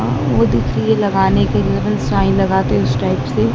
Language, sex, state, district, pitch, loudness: Hindi, female, Madhya Pradesh, Dhar, 110 Hz, -15 LUFS